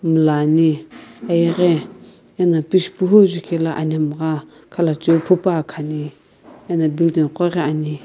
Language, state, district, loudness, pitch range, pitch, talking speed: Sumi, Nagaland, Kohima, -18 LUFS, 155-175 Hz, 160 Hz, 105 wpm